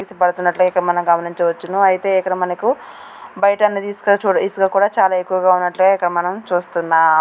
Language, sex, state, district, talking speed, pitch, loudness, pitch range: Telugu, female, Andhra Pradesh, Srikakulam, 150 wpm, 185 Hz, -16 LUFS, 175-195 Hz